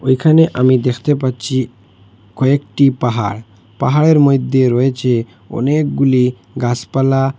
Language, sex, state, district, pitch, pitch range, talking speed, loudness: Bengali, male, Assam, Hailakandi, 130 Hz, 120-135 Hz, 90 wpm, -14 LUFS